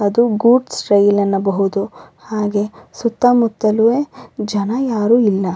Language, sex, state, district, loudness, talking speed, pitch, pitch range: Kannada, female, Karnataka, Raichur, -16 LUFS, 95 wpm, 215 Hz, 200-235 Hz